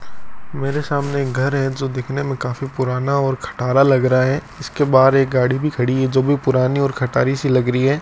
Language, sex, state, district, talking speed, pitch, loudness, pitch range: Hindi, male, Rajasthan, Bikaner, 230 wpm, 135 Hz, -18 LUFS, 130-140 Hz